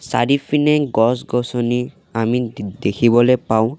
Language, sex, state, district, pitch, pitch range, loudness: Assamese, male, Assam, Sonitpur, 120 Hz, 115-125 Hz, -18 LUFS